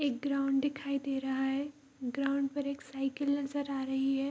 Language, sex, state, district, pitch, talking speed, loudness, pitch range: Hindi, female, Bihar, Kishanganj, 275 Hz, 195 wpm, -34 LUFS, 270-280 Hz